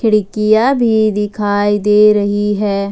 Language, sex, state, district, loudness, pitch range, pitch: Hindi, female, Jharkhand, Ranchi, -13 LUFS, 205-215 Hz, 210 Hz